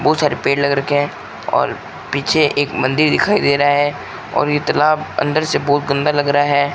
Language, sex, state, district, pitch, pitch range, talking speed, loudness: Hindi, male, Rajasthan, Bikaner, 145 Hz, 140-150 Hz, 205 wpm, -16 LUFS